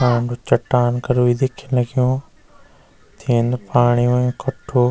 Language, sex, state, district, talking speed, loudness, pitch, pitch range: Garhwali, male, Uttarakhand, Uttarkashi, 120 wpm, -18 LUFS, 125 Hz, 120-130 Hz